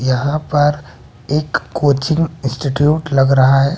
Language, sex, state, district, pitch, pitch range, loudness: Hindi, male, Bihar, West Champaran, 145 Hz, 135-150 Hz, -15 LUFS